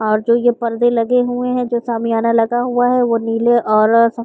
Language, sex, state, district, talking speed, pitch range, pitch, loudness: Hindi, female, Uttar Pradesh, Gorakhpur, 240 wpm, 230-245 Hz, 235 Hz, -15 LUFS